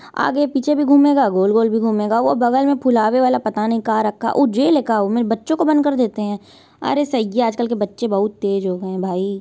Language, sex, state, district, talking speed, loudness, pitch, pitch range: Hindi, female, Uttar Pradesh, Varanasi, 255 wpm, -17 LUFS, 230 Hz, 210-270 Hz